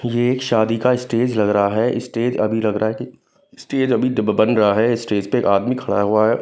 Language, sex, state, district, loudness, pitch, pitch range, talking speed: Hindi, male, Punjab, Kapurthala, -18 LUFS, 115 Hz, 105-125 Hz, 225 wpm